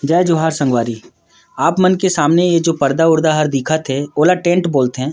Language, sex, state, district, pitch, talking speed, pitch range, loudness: Surgujia, male, Chhattisgarh, Sarguja, 160 Hz, 210 wpm, 140-170 Hz, -15 LUFS